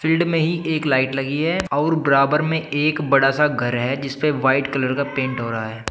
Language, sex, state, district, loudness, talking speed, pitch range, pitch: Hindi, male, Uttar Pradesh, Shamli, -20 LUFS, 245 wpm, 130-155 Hz, 140 Hz